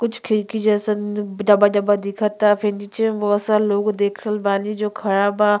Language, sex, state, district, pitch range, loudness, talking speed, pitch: Bhojpuri, female, Uttar Pradesh, Ghazipur, 205-215 Hz, -19 LUFS, 205 wpm, 210 Hz